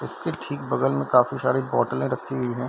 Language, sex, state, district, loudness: Hindi, male, Bihar, Darbhanga, -24 LUFS